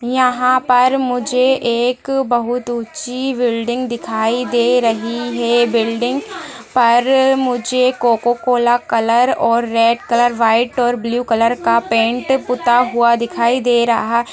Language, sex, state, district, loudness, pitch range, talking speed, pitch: Hindi, female, Uttar Pradesh, Ghazipur, -15 LUFS, 235-250 Hz, 130 wpm, 240 Hz